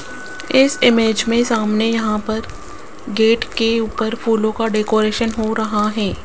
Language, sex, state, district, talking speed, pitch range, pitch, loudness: Hindi, female, Rajasthan, Jaipur, 145 wpm, 220-230 Hz, 225 Hz, -17 LUFS